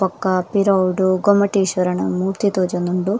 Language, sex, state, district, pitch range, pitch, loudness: Tulu, female, Karnataka, Dakshina Kannada, 180-200 Hz, 190 Hz, -18 LUFS